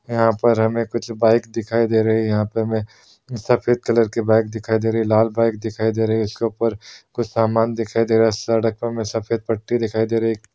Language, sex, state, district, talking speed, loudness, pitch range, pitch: Hindi, male, Chhattisgarh, Sukma, 235 wpm, -19 LUFS, 110-115 Hz, 115 Hz